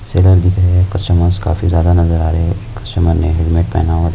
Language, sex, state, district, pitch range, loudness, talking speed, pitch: Hindi, male, Rajasthan, Nagaur, 85-95 Hz, -13 LUFS, 245 wpm, 85 Hz